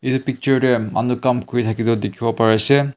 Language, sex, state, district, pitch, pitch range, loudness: Nagamese, male, Nagaland, Kohima, 120 Hz, 115-130 Hz, -18 LUFS